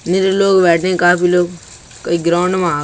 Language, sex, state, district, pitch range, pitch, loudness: Bundeli, male, Uttar Pradesh, Budaun, 170-185 Hz, 180 Hz, -14 LUFS